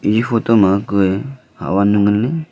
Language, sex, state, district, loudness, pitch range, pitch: Wancho, male, Arunachal Pradesh, Longding, -15 LUFS, 100-115 Hz, 105 Hz